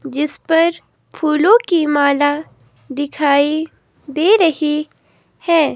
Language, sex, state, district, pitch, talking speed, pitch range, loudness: Hindi, female, Himachal Pradesh, Shimla, 305 Hz, 95 wpm, 290-330 Hz, -15 LUFS